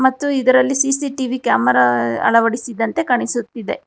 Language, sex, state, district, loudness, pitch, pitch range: Kannada, female, Karnataka, Bangalore, -17 LUFS, 245 Hz, 225-260 Hz